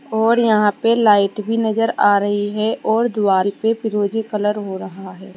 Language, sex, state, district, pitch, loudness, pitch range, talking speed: Hindi, female, Uttar Pradesh, Saharanpur, 210 Hz, -17 LUFS, 205-225 Hz, 190 wpm